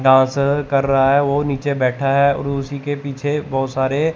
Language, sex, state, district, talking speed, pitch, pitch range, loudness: Hindi, male, Chandigarh, Chandigarh, 215 wpm, 140 Hz, 135-140 Hz, -18 LUFS